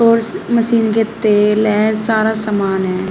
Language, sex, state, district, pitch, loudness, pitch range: Hindi, female, Uttar Pradesh, Shamli, 215 Hz, -15 LUFS, 210-225 Hz